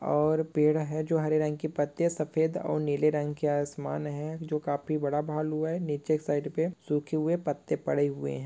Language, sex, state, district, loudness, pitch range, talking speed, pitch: Hindi, male, West Bengal, Malda, -29 LUFS, 145-155 Hz, 215 wpm, 150 Hz